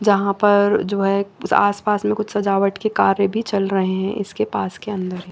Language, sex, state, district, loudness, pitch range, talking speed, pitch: Hindi, female, Chandigarh, Chandigarh, -19 LUFS, 195-205 Hz, 215 wpm, 200 Hz